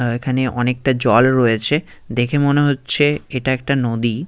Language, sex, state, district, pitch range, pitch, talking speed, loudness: Bengali, male, West Bengal, Jhargram, 120-140 Hz, 130 Hz, 155 wpm, -17 LUFS